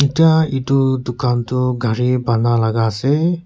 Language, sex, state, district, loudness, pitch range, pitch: Nagamese, male, Nagaland, Kohima, -17 LUFS, 120-140 Hz, 125 Hz